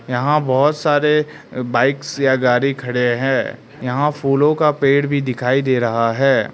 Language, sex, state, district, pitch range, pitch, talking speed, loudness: Hindi, male, Arunachal Pradesh, Lower Dibang Valley, 125-145 Hz, 135 Hz, 155 wpm, -17 LUFS